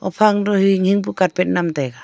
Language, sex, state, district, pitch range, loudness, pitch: Wancho, female, Arunachal Pradesh, Longding, 175-200 Hz, -17 LUFS, 190 Hz